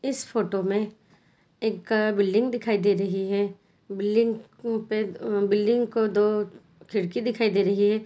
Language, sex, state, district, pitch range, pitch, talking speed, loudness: Hindi, female, Bihar, Jahanabad, 200-220 Hz, 210 Hz, 155 wpm, -25 LUFS